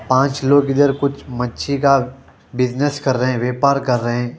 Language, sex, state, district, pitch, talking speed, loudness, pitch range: Hindi, male, Haryana, Jhajjar, 130 Hz, 190 wpm, -17 LUFS, 125-140 Hz